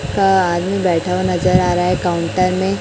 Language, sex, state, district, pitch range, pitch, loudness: Hindi, male, Chhattisgarh, Raipur, 175-185 Hz, 180 Hz, -16 LUFS